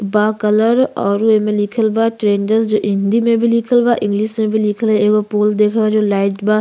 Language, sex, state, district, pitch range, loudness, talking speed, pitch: Bhojpuri, female, Uttar Pradesh, Ghazipur, 210-225 Hz, -15 LUFS, 225 wpm, 215 Hz